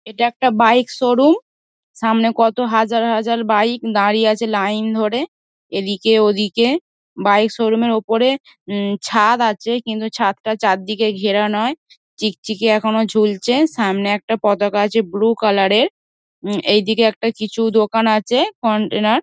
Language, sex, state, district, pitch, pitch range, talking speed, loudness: Bengali, female, West Bengal, Dakshin Dinajpur, 220 Hz, 210-230 Hz, 140 wpm, -17 LUFS